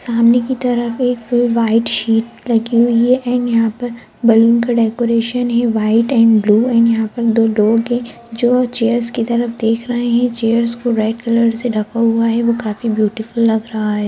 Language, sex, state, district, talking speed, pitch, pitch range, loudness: Hindi, female, Bihar, Jamui, 190 wpm, 230 Hz, 225-240 Hz, -15 LUFS